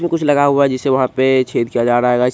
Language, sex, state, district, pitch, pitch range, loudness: Hindi, male, Bihar, Supaul, 130 Hz, 125-140 Hz, -15 LUFS